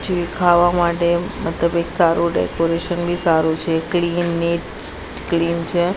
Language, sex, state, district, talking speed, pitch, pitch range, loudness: Gujarati, female, Gujarat, Gandhinagar, 140 wpm, 170 Hz, 170-175 Hz, -18 LUFS